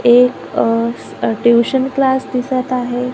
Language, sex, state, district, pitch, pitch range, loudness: Marathi, female, Maharashtra, Gondia, 250 Hz, 240-260 Hz, -15 LUFS